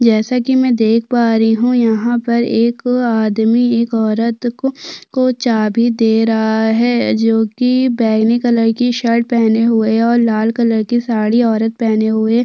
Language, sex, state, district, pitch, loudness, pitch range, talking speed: Hindi, female, Chhattisgarh, Sukma, 230 Hz, -14 LUFS, 225-240 Hz, 175 wpm